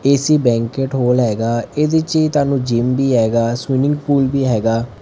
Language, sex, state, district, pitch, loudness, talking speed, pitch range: Punjabi, male, Punjab, Fazilka, 130 Hz, -16 LUFS, 165 wpm, 115-140 Hz